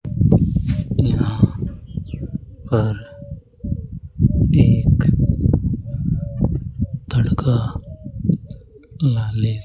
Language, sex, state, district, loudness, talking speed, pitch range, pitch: Hindi, male, Rajasthan, Jaipur, -19 LUFS, 35 wpm, 105-120 Hz, 110 Hz